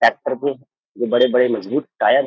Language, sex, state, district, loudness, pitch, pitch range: Hindi, male, Uttar Pradesh, Jyotiba Phule Nagar, -19 LUFS, 125 Hz, 120-130 Hz